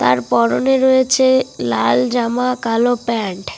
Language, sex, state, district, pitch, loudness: Bengali, female, West Bengal, Cooch Behar, 235 Hz, -16 LUFS